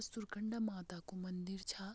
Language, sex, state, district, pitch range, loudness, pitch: Garhwali, female, Uttarakhand, Tehri Garhwal, 185-215 Hz, -44 LUFS, 195 Hz